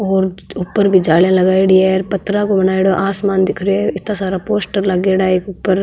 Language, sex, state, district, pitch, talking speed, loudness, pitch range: Marwari, female, Rajasthan, Nagaur, 190 Hz, 215 wpm, -14 LUFS, 190-195 Hz